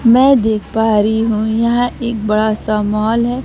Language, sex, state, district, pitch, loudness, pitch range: Hindi, female, Bihar, Kaimur, 220 Hz, -14 LUFS, 215-235 Hz